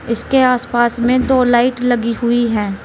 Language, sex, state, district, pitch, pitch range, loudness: Hindi, female, Uttar Pradesh, Saharanpur, 240 Hz, 235-250 Hz, -15 LUFS